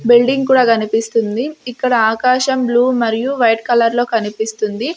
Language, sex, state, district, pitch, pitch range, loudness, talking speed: Telugu, female, Andhra Pradesh, Sri Satya Sai, 240 Hz, 225-255 Hz, -15 LUFS, 135 wpm